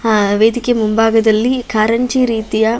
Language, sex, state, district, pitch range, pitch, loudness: Kannada, female, Karnataka, Shimoga, 220-240 Hz, 225 Hz, -14 LUFS